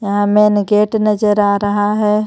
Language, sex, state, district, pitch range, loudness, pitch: Hindi, female, Jharkhand, Ranchi, 205-210 Hz, -14 LUFS, 210 Hz